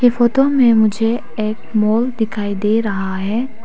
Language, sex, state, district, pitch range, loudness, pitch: Hindi, female, Arunachal Pradesh, Papum Pare, 210-240 Hz, -16 LUFS, 225 Hz